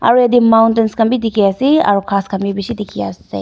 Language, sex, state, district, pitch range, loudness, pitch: Nagamese, female, Nagaland, Dimapur, 200-235 Hz, -14 LUFS, 220 Hz